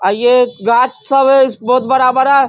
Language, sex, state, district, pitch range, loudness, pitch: Hindi, male, Bihar, Darbhanga, 245-265 Hz, -12 LUFS, 255 Hz